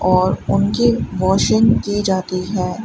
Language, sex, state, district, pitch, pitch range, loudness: Hindi, female, Rajasthan, Bikaner, 185 Hz, 185-205 Hz, -17 LUFS